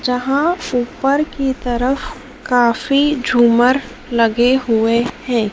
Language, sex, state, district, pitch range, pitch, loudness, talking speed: Hindi, female, Madhya Pradesh, Dhar, 240-275 Hz, 250 Hz, -16 LUFS, 100 wpm